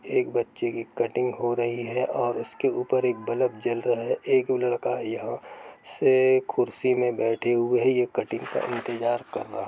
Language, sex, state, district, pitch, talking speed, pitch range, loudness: Hindi, male, Jharkhand, Jamtara, 125 Hz, 185 wpm, 120-130 Hz, -26 LUFS